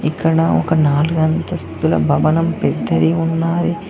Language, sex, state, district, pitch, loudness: Telugu, male, Telangana, Mahabubabad, 155 Hz, -16 LUFS